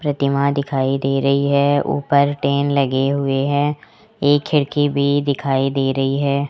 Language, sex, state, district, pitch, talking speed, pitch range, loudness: Hindi, male, Rajasthan, Jaipur, 140 Hz, 155 wpm, 135-145 Hz, -18 LUFS